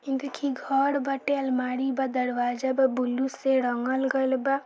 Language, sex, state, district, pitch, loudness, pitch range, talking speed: Bhojpuri, female, Bihar, Saran, 265 Hz, -26 LUFS, 255-275 Hz, 155 wpm